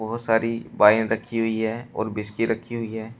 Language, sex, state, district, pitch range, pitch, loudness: Hindi, male, Uttar Pradesh, Shamli, 110-115 Hz, 115 Hz, -23 LUFS